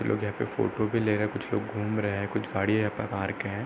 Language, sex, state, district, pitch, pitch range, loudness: Hindi, male, Uttar Pradesh, Hamirpur, 105 Hz, 100-110 Hz, -29 LUFS